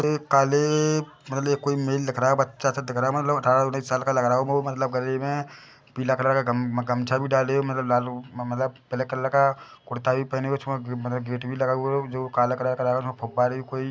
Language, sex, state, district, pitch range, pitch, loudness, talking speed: Hindi, male, Chhattisgarh, Bilaspur, 125-135 Hz, 130 Hz, -24 LUFS, 230 wpm